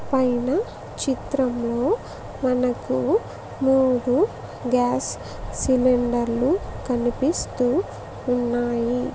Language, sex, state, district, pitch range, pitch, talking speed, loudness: Telugu, female, Andhra Pradesh, Visakhapatnam, 240-265 Hz, 250 Hz, 50 wpm, -23 LUFS